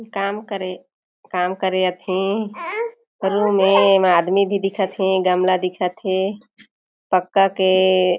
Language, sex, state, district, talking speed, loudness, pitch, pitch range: Chhattisgarhi, female, Chhattisgarh, Jashpur, 125 wpm, -19 LUFS, 190 Hz, 185-200 Hz